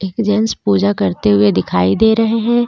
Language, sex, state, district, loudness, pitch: Hindi, female, Jharkhand, Deoghar, -14 LUFS, 190 Hz